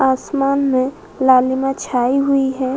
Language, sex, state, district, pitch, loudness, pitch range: Hindi, female, Uttar Pradesh, Budaun, 265 Hz, -17 LUFS, 260-275 Hz